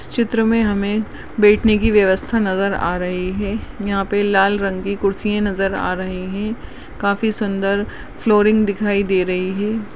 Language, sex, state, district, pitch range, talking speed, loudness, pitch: Hindi, female, Maharashtra, Nagpur, 195-215 Hz, 170 wpm, -18 LUFS, 205 Hz